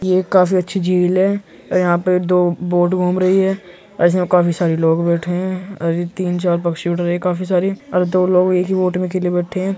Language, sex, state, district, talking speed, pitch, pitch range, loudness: Hindi, male, Uttar Pradesh, Muzaffarnagar, 225 wpm, 180 Hz, 175-185 Hz, -17 LUFS